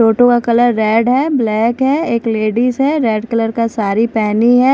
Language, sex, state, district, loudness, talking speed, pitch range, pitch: Hindi, female, Odisha, Khordha, -14 LUFS, 205 wpm, 225-250 Hz, 235 Hz